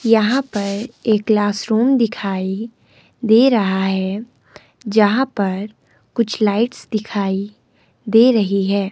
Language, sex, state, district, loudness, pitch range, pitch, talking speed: Hindi, female, Himachal Pradesh, Shimla, -17 LUFS, 200-230 Hz, 215 Hz, 110 wpm